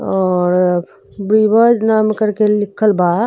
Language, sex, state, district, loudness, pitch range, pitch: Bhojpuri, female, Uttar Pradesh, Gorakhpur, -14 LUFS, 180-215 Hz, 210 Hz